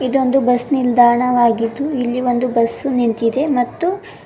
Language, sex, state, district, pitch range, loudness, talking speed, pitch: Kannada, female, Karnataka, Bidar, 240-270 Hz, -16 LUFS, 140 wpm, 250 Hz